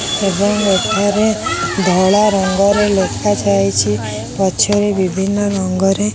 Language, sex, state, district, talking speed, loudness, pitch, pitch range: Odia, female, Odisha, Khordha, 95 wpm, -14 LUFS, 195 Hz, 185-205 Hz